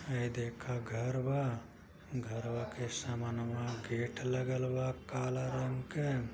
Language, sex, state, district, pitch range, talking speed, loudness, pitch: Bhojpuri, male, Uttar Pradesh, Gorakhpur, 120-130 Hz, 130 wpm, -38 LUFS, 125 Hz